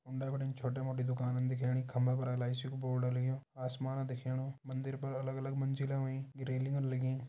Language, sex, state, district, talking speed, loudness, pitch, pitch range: Hindi, male, Uttarakhand, Tehri Garhwal, 180 wpm, -37 LUFS, 130 Hz, 125-135 Hz